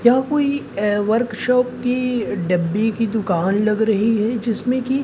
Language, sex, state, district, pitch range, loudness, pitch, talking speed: Hindi, male, Madhya Pradesh, Umaria, 210-250 Hz, -19 LUFS, 225 Hz, 140 wpm